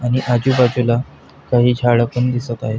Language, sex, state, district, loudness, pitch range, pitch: Marathi, male, Maharashtra, Pune, -17 LUFS, 120-125 Hz, 120 Hz